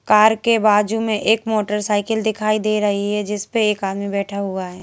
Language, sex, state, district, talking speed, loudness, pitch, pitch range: Hindi, female, Madhya Pradesh, Bhopal, 210 wpm, -19 LUFS, 210 Hz, 200-220 Hz